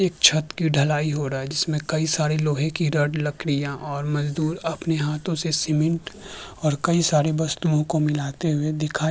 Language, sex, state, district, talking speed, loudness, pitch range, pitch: Hindi, male, Uttar Pradesh, Hamirpur, 190 wpm, -23 LUFS, 150-160 Hz, 155 Hz